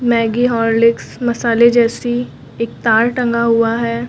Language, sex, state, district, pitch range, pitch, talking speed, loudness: Hindi, female, Uttar Pradesh, Lucknow, 230-240 Hz, 235 Hz, 130 wpm, -15 LUFS